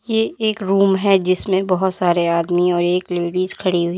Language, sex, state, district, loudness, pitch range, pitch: Hindi, female, Uttar Pradesh, Lalitpur, -18 LUFS, 175-195 Hz, 185 Hz